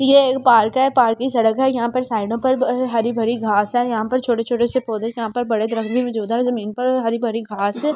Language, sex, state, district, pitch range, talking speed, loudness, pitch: Hindi, female, Delhi, New Delhi, 225-255 Hz, 255 wpm, -19 LUFS, 235 Hz